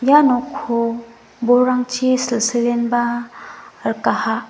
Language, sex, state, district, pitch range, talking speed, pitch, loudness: Garo, female, Meghalaya, West Garo Hills, 235-255 Hz, 65 wpm, 240 Hz, -18 LUFS